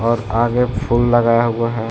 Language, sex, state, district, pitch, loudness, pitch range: Hindi, male, Bihar, Jahanabad, 115 Hz, -16 LUFS, 115-120 Hz